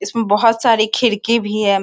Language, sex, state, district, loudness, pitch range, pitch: Hindi, female, Bihar, Sitamarhi, -15 LUFS, 205-230 Hz, 220 Hz